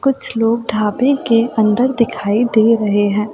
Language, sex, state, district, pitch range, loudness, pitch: Hindi, female, Delhi, New Delhi, 210-245 Hz, -15 LUFS, 230 Hz